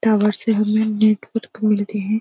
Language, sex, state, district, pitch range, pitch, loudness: Hindi, female, Uttar Pradesh, Jyotiba Phule Nagar, 210-220 Hz, 215 Hz, -18 LUFS